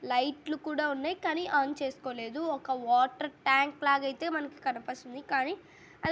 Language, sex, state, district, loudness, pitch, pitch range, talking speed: Telugu, female, Andhra Pradesh, Anantapur, -31 LUFS, 280 Hz, 265-305 Hz, 125 wpm